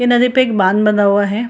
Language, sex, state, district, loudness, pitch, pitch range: Hindi, female, Bihar, Gaya, -13 LUFS, 210 Hz, 200-245 Hz